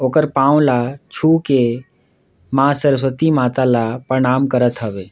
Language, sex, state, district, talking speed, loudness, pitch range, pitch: Surgujia, male, Chhattisgarh, Sarguja, 130 wpm, -16 LUFS, 125-140 Hz, 130 Hz